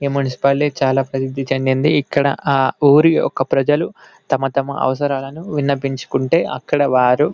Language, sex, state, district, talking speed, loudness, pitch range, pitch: Telugu, male, Telangana, Karimnagar, 145 wpm, -17 LUFS, 135-145 Hz, 140 Hz